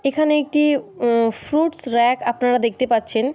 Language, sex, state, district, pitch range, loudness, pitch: Bengali, female, West Bengal, Kolkata, 235-295 Hz, -19 LUFS, 250 Hz